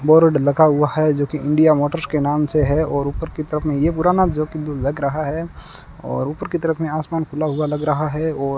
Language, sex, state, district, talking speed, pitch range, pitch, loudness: Hindi, male, Rajasthan, Bikaner, 260 wpm, 145-160 Hz, 150 Hz, -19 LUFS